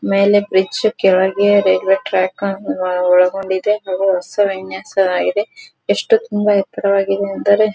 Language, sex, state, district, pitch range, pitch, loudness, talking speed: Kannada, female, Karnataka, Dharwad, 190-205 Hz, 195 Hz, -16 LUFS, 115 wpm